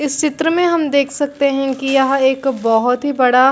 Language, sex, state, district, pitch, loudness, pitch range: Hindi, female, Chhattisgarh, Bilaspur, 275 Hz, -15 LUFS, 265-290 Hz